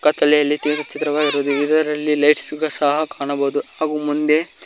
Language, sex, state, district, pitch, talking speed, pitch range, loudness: Kannada, male, Karnataka, Koppal, 150 Hz, 130 wpm, 145-150 Hz, -19 LUFS